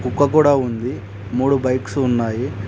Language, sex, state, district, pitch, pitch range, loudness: Telugu, male, Telangana, Mahabubabad, 125 Hz, 115-135 Hz, -18 LUFS